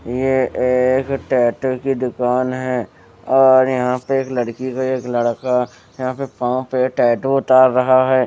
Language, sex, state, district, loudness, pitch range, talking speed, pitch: Hindi, male, Bihar, West Champaran, -17 LUFS, 125-130 Hz, 160 wpm, 130 Hz